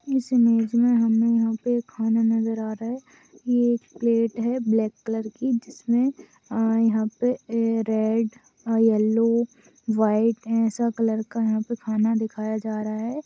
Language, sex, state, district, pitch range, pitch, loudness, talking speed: Hindi, female, Maharashtra, Aurangabad, 220-240 Hz, 230 Hz, -23 LUFS, 155 wpm